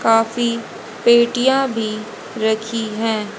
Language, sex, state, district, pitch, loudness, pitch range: Hindi, female, Haryana, Charkhi Dadri, 225 Hz, -18 LUFS, 220-235 Hz